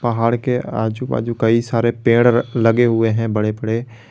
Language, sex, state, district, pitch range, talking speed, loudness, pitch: Hindi, male, Jharkhand, Garhwa, 115-120 Hz, 175 wpm, -17 LUFS, 115 Hz